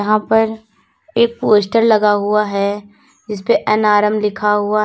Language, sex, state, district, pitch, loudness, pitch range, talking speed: Hindi, female, Uttar Pradesh, Lalitpur, 210 Hz, -15 LUFS, 205-220 Hz, 150 wpm